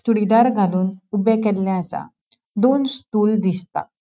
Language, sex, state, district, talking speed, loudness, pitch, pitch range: Konkani, female, Goa, North and South Goa, 120 wpm, -19 LUFS, 210 Hz, 190-225 Hz